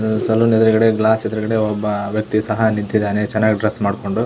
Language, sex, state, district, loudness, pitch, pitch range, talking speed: Kannada, male, Karnataka, Belgaum, -17 LUFS, 110 Hz, 105-110 Hz, 155 wpm